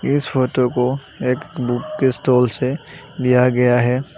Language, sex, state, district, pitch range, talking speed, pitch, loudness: Hindi, male, Assam, Sonitpur, 125-135 Hz, 160 wpm, 125 Hz, -18 LUFS